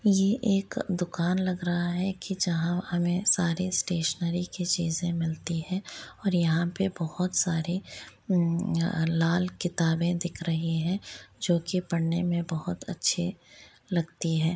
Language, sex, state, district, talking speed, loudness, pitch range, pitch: Hindi, female, Jharkhand, Jamtara, 140 wpm, -28 LUFS, 170-185 Hz, 175 Hz